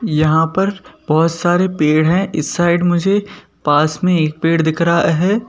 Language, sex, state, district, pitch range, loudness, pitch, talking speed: Hindi, male, Madhya Pradesh, Bhopal, 160-185 Hz, -15 LUFS, 170 Hz, 175 wpm